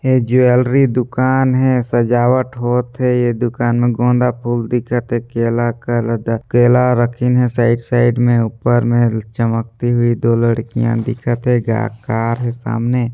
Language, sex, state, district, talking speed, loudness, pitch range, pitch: Hindi, male, Chhattisgarh, Sarguja, 155 wpm, -15 LUFS, 115-125 Hz, 120 Hz